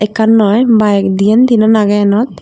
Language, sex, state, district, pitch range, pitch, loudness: Chakma, female, Tripura, Dhalai, 205-225 Hz, 215 Hz, -10 LUFS